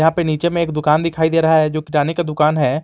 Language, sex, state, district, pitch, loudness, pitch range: Hindi, male, Jharkhand, Garhwa, 155 Hz, -17 LUFS, 150-165 Hz